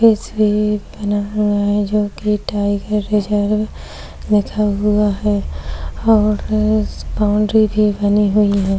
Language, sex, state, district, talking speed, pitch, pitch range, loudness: Hindi, female, Maharashtra, Chandrapur, 125 wpm, 210 Hz, 205-210 Hz, -17 LUFS